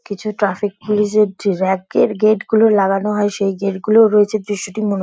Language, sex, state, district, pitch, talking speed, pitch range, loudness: Bengali, female, West Bengal, Dakshin Dinajpur, 205 Hz, 180 wpm, 195-215 Hz, -16 LUFS